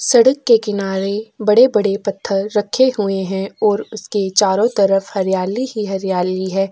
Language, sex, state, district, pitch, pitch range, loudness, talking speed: Hindi, female, Goa, North and South Goa, 200 Hz, 195-220 Hz, -17 LUFS, 145 wpm